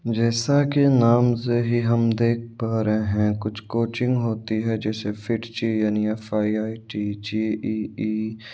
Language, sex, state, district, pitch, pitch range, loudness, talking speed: Hindi, male, Uttar Pradesh, Varanasi, 110 Hz, 110-115 Hz, -23 LUFS, 135 wpm